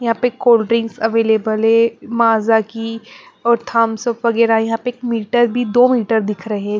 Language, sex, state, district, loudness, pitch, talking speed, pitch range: Hindi, female, Bihar, Patna, -16 LUFS, 230 Hz, 195 wpm, 225-235 Hz